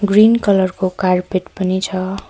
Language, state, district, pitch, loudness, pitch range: Nepali, West Bengal, Darjeeling, 190 Hz, -16 LUFS, 185-200 Hz